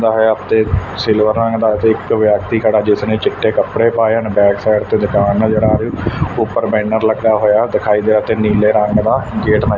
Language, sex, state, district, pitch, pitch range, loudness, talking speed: Punjabi, male, Punjab, Fazilka, 110 Hz, 105-110 Hz, -14 LUFS, 195 wpm